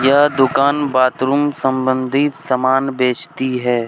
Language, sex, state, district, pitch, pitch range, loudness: Hindi, male, Jharkhand, Deoghar, 135 Hz, 130-140 Hz, -16 LUFS